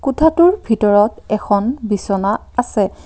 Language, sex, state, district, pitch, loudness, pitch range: Assamese, female, Assam, Kamrup Metropolitan, 215 Hz, -16 LUFS, 205-250 Hz